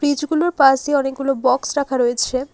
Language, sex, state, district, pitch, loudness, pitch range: Bengali, female, West Bengal, Alipurduar, 275 Hz, -18 LUFS, 260-290 Hz